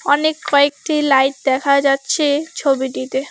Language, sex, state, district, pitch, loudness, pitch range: Bengali, female, West Bengal, Alipurduar, 280 Hz, -16 LUFS, 270-295 Hz